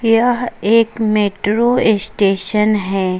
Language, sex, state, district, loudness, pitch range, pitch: Hindi, female, Uttar Pradesh, Lucknow, -15 LUFS, 200-230 Hz, 215 Hz